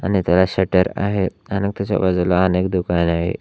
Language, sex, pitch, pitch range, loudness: Marathi, male, 95 Hz, 90-100 Hz, -19 LUFS